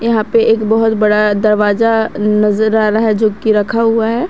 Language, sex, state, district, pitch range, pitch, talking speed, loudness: Hindi, female, Jharkhand, Garhwa, 210-225 Hz, 220 Hz, 195 wpm, -12 LUFS